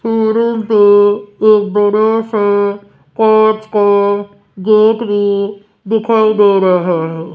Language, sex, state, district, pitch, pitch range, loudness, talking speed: Hindi, female, Rajasthan, Jaipur, 205 Hz, 200-220 Hz, -12 LUFS, 115 wpm